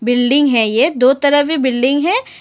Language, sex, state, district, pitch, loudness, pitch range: Hindi, female, Arunachal Pradesh, Lower Dibang Valley, 275 Hz, -13 LUFS, 245-290 Hz